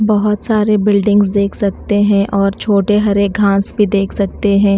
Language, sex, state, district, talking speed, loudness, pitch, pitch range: Hindi, female, Odisha, Nuapada, 175 wpm, -13 LUFS, 205 Hz, 200-210 Hz